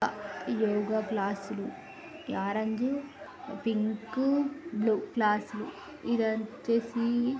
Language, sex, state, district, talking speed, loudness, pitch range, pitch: Telugu, female, Andhra Pradesh, Srikakulam, 75 wpm, -31 LUFS, 215-250 Hz, 220 Hz